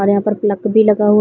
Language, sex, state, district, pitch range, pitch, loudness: Hindi, female, Chhattisgarh, Raigarh, 205-210 Hz, 210 Hz, -14 LUFS